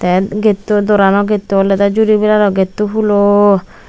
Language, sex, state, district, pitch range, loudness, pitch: Chakma, female, Tripura, Unakoti, 195-210 Hz, -12 LUFS, 205 Hz